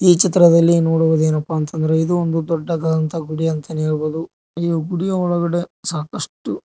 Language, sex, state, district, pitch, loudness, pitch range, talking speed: Kannada, male, Karnataka, Koppal, 165 Hz, -18 LUFS, 160-170 Hz, 160 wpm